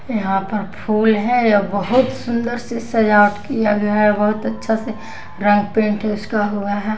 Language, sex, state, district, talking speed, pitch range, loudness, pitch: Hindi, female, Bihar, West Champaran, 170 wpm, 205-225 Hz, -18 LUFS, 210 Hz